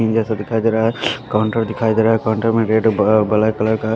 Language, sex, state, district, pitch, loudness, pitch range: Hindi, male, Punjab, Fazilka, 110 Hz, -17 LUFS, 110-115 Hz